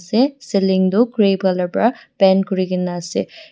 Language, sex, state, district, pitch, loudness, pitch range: Nagamese, female, Nagaland, Dimapur, 195 Hz, -17 LUFS, 185-235 Hz